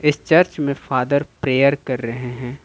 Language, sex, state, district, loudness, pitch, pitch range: Hindi, male, Jharkhand, Ranchi, -19 LUFS, 140 Hz, 125-145 Hz